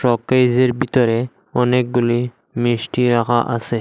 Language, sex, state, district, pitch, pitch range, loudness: Bengali, male, Assam, Hailakandi, 120 Hz, 120-125 Hz, -18 LUFS